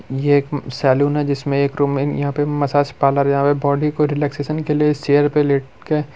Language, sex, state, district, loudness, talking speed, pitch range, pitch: Hindi, male, Bihar, Muzaffarpur, -18 LUFS, 235 wpm, 140-145 Hz, 145 Hz